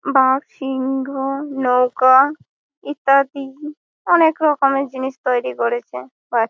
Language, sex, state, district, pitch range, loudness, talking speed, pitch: Bengali, female, West Bengal, Malda, 250-280 Hz, -17 LUFS, 100 wpm, 270 Hz